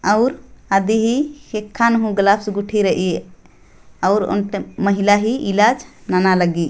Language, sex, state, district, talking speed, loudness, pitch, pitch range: Sadri, female, Chhattisgarh, Jashpur, 135 wpm, -17 LUFS, 205 Hz, 185-220 Hz